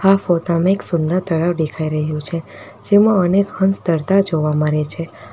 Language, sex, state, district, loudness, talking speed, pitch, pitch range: Gujarati, female, Gujarat, Valsad, -17 LUFS, 180 wpm, 170 Hz, 155-190 Hz